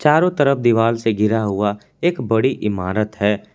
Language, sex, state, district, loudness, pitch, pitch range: Hindi, male, Jharkhand, Palamu, -18 LUFS, 110 Hz, 105-130 Hz